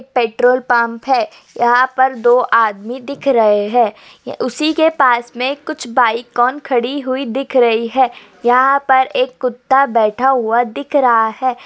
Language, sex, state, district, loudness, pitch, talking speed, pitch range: Hindi, female, Uttar Pradesh, Hamirpur, -14 LUFS, 250 Hz, 160 wpm, 240-265 Hz